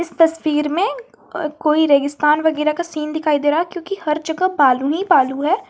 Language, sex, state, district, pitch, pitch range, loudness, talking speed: Hindi, female, Jharkhand, Garhwa, 310 Hz, 300-345 Hz, -18 LUFS, 180 wpm